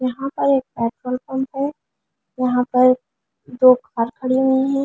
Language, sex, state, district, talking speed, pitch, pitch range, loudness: Hindi, female, Delhi, New Delhi, 160 wpm, 255 Hz, 250-265 Hz, -19 LUFS